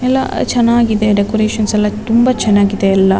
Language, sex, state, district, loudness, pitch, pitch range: Kannada, female, Karnataka, Dakshina Kannada, -13 LUFS, 215 Hz, 205-235 Hz